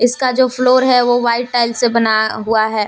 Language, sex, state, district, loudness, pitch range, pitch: Hindi, female, Jharkhand, Deoghar, -14 LUFS, 225-250 Hz, 240 Hz